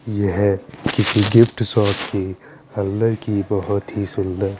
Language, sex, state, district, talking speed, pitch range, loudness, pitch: Hindi, male, Bihar, Kaimur, 130 wpm, 100-115 Hz, -19 LUFS, 100 Hz